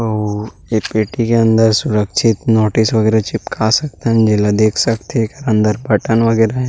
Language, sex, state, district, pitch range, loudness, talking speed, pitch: Chhattisgarhi, male, Chhattisgarh, Rajnandgaon, 110-115 Hz, -15 LUFS, 150 wpm, 110 Hz